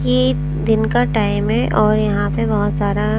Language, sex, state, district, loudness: Hindi, female, Bihar, Patna, -17 LUFS